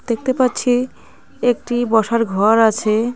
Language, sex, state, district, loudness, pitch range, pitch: Bengali, female, West Bengal, Cooch Behar, -17 LUFS, 225-245 Hz, 230 Hz